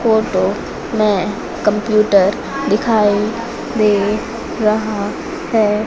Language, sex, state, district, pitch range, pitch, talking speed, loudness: Hindi, female, Madhya Pradesh, Umaria, 205-220 Hz, 215 Hz, 70 wpm, -16 LUFS